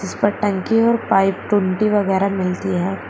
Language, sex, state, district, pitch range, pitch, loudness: Hindi, female, Uttar Pradesh, Shamli, 190-205 Hz, 195 Hz, -18 LUFS